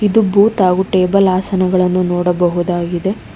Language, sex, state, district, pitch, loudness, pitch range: Kannada, female, Karnataka, Bangalore, 185 Hz, -14 LUFS, 180-195 Hz